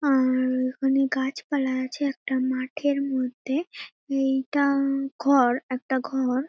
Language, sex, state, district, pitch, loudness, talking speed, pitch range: Bengali, female, West Bengal, North 24 Parganas, 270 Hz, -25 LUFS, 120 wpm, 260-280 Hz